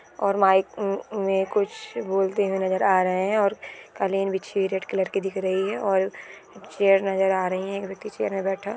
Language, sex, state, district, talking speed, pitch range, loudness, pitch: Hindi, female, Bihar, East Champaran, 220 wpm, 190-200 Hz, -24 LUFS, 195 Hz